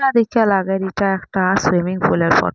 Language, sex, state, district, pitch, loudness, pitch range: Bengali, female, Assam, Hailakandi, 190 Hz, -17 LUFS, 185-205 Hz